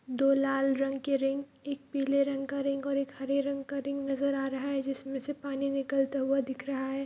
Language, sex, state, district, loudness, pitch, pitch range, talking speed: Hindi, female, Bihar, Saharsa, -31 LUFS, 275 Hz, 270-280 Hz, 245 wpm